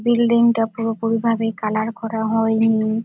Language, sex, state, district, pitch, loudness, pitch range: Bengali, female, West Bengal, Dakshin Dinajpur, 225 Hz, -19 LUFS, 220-230 Hz